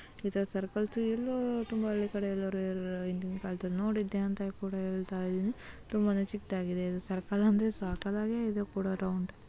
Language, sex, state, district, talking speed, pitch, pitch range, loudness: Kannada, female, Karnataka, Mysore, 145 wpm, 195 Hz, 185-210 Hz, -34 LUFS